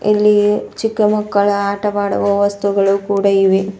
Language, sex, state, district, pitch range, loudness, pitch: Kannada, female, Karnataka, Bidar, 200-210 Hz, -15 LUFS, 200 Hz